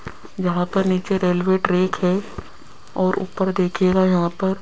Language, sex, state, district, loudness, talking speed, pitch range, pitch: Hindi, female, Rajasthan, Jaipur, -20 LUFS, 145 wpm, 180-190 Hz, 185 Hz